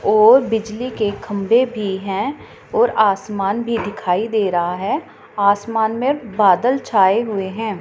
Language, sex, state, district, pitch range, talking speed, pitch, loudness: Hindi, female, Punjab, Pathankot, 195-235 Hz, 145 wpm, 215 Hz, -18 LUFS